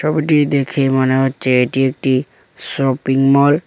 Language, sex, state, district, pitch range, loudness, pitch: Bengali, male, West Bengal, Cooch Behar, 130-145 Hz, -15 LUFS, 135 Hz